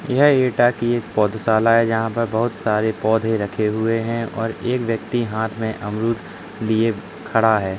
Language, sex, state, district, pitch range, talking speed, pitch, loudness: Hindi, male, Uttar Pradesh, Etah, 110-115 Hz, 175 wpm, 115 Hz, -20 LUFS